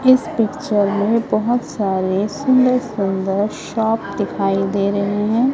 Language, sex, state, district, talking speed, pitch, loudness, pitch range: Hindi, female, Chhattisgarh, Raipur, 130 wpm, 215 Hz, -18 LUFS, 200-245 Hz